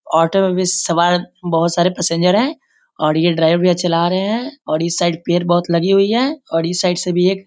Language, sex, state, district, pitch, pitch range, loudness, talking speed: Hindi, male, Bihar, Sitamarhi, 175 Hz, 170-190 Hz, -16 LUFS, 235 wpm